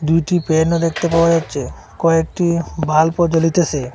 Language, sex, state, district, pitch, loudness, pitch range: Bengali, male, Assam, Hailakandi, 165 Hz, -16 LUFS, 160-170 Hz